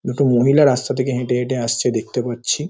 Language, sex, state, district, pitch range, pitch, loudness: Bengali, male, West Bengal, Paschim Medinipur, 120-135 Hz, 125 Hz, -18 LUFS